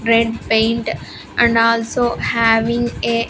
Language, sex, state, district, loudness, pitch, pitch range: English, female, Andhra Pradesh, Sri Satya Sai, -16 LUFS, 230 Hz, 225-235 Hz